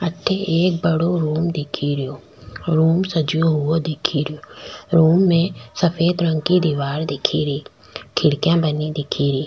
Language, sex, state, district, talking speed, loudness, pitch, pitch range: Rajasthani, female, Rajasthan, Nagaur, 145 wpm, -19 LUFS, 160 Hz, 150-170 Hz